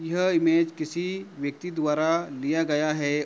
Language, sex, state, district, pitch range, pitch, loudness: Hindi, male, Uttar Pradesh, Hamirpur, 150-170 Hz, 160 Hz, -26 LUFS